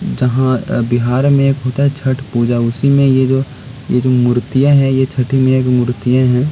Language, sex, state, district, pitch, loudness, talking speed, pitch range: Hindi, male, Bihar, Gopalganj, 130 Hz, -13 LUFS, 200 wpm, 125-135 Hz